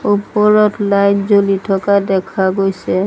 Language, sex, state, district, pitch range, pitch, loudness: Assamese, female, Assam, Sonitpur, 195-205 Hz, 200 Hz, -14 LUFS